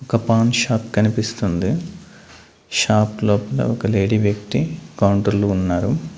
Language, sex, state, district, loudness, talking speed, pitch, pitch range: Telugu, male, Andhra Pradesh, Manyam, -19 LUFS, 115 wpm, 110 Hz, 100-115 Hz